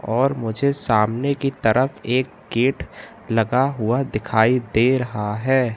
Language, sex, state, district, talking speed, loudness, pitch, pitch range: Hindi, male, Madhya Pradesh, Katni, 135 wpm, -20 LUFS, 125 Hz, 110-135 Hz